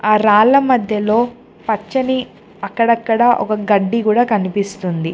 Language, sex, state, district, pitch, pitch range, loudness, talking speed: Telugu, female, Telangana, Mahabubabad, 220 Hz, 210-240 Hz, -15 LUFS, 105 wpm